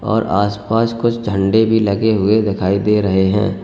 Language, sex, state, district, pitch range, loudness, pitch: Hindi, male, Uttar Pradesh, Lalitpur, 100-110 Hz, -15 LUFS, 105 Hz